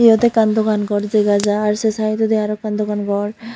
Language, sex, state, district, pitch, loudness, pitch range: Chakma, female, Tripura, Unakoti, 215 Hz, -17 LUFS, 205-220 Hz